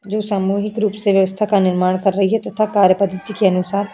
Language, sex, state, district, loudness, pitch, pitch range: Hindi, female, Uttar Pradesh, Jyotiba Phule Nagar, -17 LUFS, 200 Hz, 190-210 Hz